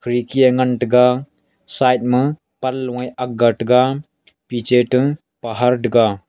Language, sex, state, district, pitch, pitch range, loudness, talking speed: Wancho, male, Arunachal Pradesh, Longding, 125 Hz, 120-130 Hz, -17 LUFS, 125 wpm